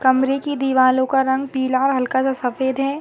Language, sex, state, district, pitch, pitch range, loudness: Hindi, female, Jharkhand, Sahebganj, 265 Hz, 260-270 Hz, -19 LUFS